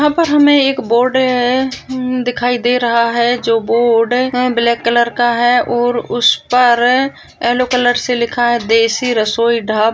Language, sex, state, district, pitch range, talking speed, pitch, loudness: Hindi, female, Bihar, Jahanabad, 235-250 Hz, 175 wpm, 245 Hz, -13 LUFS